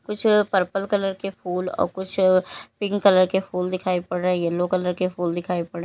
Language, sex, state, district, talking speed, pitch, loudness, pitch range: Hindi, female, Uttar Pradesh, Lalitpur, 215 wpm, 185 Hz, -22 LUFS, 180-195 Hz